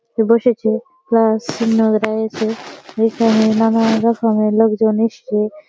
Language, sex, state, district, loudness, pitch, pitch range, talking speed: Bengali, female, West Bengal, Malda, -16 LUFS, 225 Hz, 220-230 Hz, 95 wpm